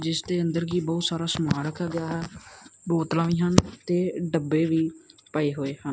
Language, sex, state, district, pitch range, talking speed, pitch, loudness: Punjabi, male, Punjab, Kapurthala, 160-170 Hz, 190 wpm, 165 Hz, -26 LUFS